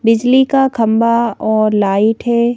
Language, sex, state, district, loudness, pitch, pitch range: Hindi, female, Madhya Pradesh, Bhopal, -13 LUFS, 230 Hz, 220-240 Hz